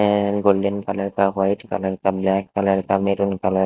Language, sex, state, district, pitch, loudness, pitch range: Hindi, male, Haryana, Jhajjar, 100 Hz, -21 LUFS, 95-100 Hz